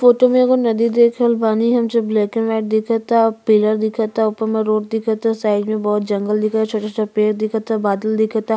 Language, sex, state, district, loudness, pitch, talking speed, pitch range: Bhojpuri, female, Uttar Pradesh, Ghazipur, -17 LUFS, 220 Hz, 215 wpm, 215-230 Hz